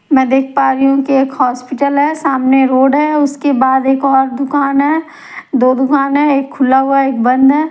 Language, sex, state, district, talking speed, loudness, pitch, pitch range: Hindi, female, Punjab, Kapurthala, 210 wpm, -12 LUFS, 275 Hz, 265-285 Hz